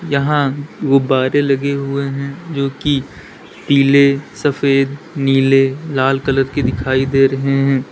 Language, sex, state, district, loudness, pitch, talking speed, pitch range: Hindi, male, Uttar Pradesh, Lalitpur, -15 LUFS, 135 Hz, 130 wpm, 135-140 Hz